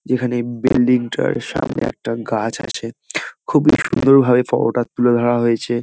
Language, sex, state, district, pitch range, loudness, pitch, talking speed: Bengali, male, West Bengal, Kolkata, 115-125 Hz, -18 LUFS, 120 Hz, 155 wpm